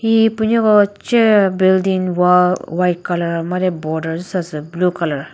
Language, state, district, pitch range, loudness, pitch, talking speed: Chakhesang, Nagaland, Dimapur, 170-205 Hz, -16 LUFS, 180 Hz, 155 wpm